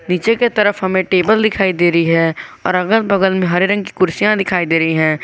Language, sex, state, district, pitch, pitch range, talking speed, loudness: Hindi, male, Jharkhand, Garhwa, 185 Hz, 175-205 Hz, 240 wpm, -14 LUFS